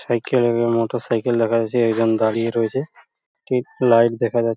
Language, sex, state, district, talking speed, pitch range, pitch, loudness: Bengali, male, West Bengal, Purulia, 185 wpm, 115-120 Hz, 115 Hz, -19 LUFS